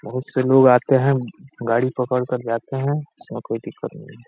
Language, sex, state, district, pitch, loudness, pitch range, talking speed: Hindi, male, Uttar Pradesh, Deoria, 130 Hz, -20 LUFS, 125-135 Hz, 210 wpm